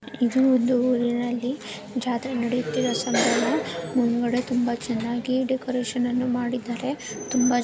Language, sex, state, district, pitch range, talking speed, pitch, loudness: Kannada, female, Karnataka, Dakshina Kannada, 240-250 Hz, 100 wpm, 245 Hz, -24 LUFS